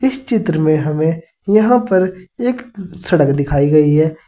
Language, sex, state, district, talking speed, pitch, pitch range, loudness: Hindi, male, Uttar Pradesh, Saharanpur, 155 wpm, 180 Hz, 155-220 Hz, -15 LUFS